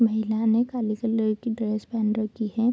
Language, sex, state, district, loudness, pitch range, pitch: Hindi, female, Bihar, Kishanganj, -25 LUFS, 215-230 Hz, 220 Hz